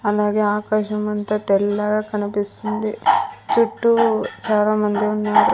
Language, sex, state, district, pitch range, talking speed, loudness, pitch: Telugu, female, Andhra Pradesh, Sri Satya Sai, 210-215 Hz, 75 wpm, -20 LUFS, 210 Hz